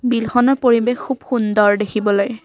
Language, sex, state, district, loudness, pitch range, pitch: Assamese, female, Assam, Kamrup Metropolitan, -16 LUFS, 210-250 Hz, 235 Hz